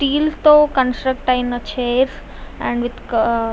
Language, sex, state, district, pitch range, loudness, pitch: Telugu, female, Andhra Pradesh, Visakhapatnam, 240-275 Hz, -17 LUFS, 255 Hz